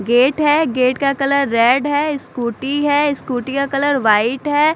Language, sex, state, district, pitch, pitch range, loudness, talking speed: Hindi, female, Bihar, Katihar, 275 Hz, 250-290 Hz, -16 LUFS, 175 wpm